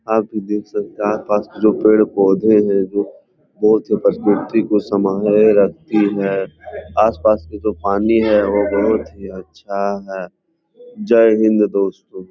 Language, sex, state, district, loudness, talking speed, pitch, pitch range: Hindi, male, Bihar, Jahanabad, -16 LUFS, 150 wpm, 105 Hz, 100-110 Hz